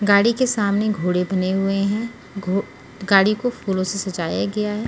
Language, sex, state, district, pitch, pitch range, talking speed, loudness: Hindi, female, Punjab, Pathankot, 200 Hz, 185-210 Hz, 170 wpm, -20 LUFS